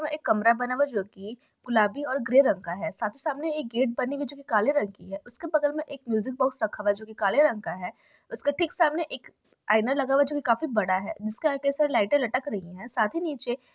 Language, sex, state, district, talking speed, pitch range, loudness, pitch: Hindi, female, Uttar Pradesh, Ghazipur, 280 wpm, 215-290 Hz, -26 LUFS, 255 Hz